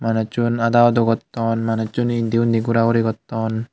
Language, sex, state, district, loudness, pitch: Chakma, male, Tripura, Unakoti, -19 LUFS, 115 Hz